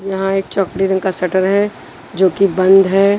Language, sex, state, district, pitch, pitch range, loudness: Hindi, female, Punjab, Pathankot, 195 Hz, 190-195 Hz, -14 LUFS